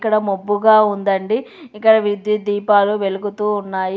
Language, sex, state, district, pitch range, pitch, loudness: Telugu, female, Telangana, Hyderabad, 200-215 Hz, 205 Hz, -17 LUFS